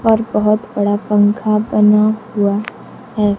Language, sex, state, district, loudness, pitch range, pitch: Hindi, female, Bihar, Kaimur, -15 LUFS, 205-215 Hz, 210 Hz